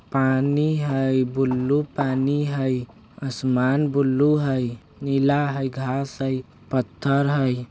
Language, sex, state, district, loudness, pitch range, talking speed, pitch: Bajjika, male, Bihar, Vaishali, -23 LUFS, 130-140 Hz, 110 wpm, 135 Hz